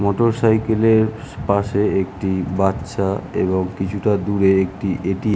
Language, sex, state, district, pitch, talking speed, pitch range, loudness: Bengali, male, West Bengal, Kolkata, 100 Hz, 135 wpm, 95-110 Hz, -19 LUFS